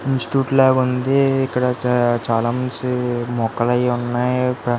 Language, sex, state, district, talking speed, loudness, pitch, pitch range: Telugu, male, Andhra Pradesh, Visakhapatnam, 110 wpm, -19 LUFS, 125 Hz, 120-130 Hz